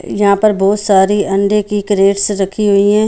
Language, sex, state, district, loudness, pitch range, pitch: Hindi, female, Haryana, Charkhi Dadri, -12 LUFS, 200-210 Hz, 205 Hz